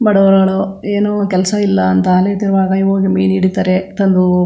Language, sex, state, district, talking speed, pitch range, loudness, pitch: Kannada, female, Karnataka, Chamarajanagar, 145 wpm, 185-195 Hz, -13 LUFS, 190 Hz